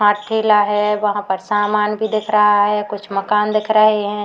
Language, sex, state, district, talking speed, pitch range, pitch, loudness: Hindi, female, Uttar Pradesh, Muzaffarnagar, 210 wpm, 205-210 Hz, 210 Hz, -16 LUFS